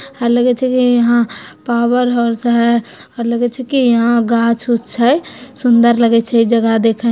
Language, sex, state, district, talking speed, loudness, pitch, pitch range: Hindi, female, Bihar, Begusarai, 150 wpm, -13 LUFS, 235 Hz, 235-245 Hz